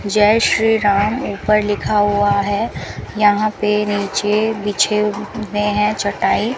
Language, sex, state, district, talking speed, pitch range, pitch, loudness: Hindi, female, Rajasthan, Bikaner, 135 wpm, 205-215 Hz, 210 Hz, -17 LUFS